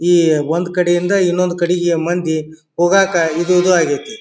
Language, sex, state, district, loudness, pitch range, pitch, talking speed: Kannada, male, Karnataka, Bijapur, -15 LUFS, 165-180 Hz, 175 Hz, 145 wpm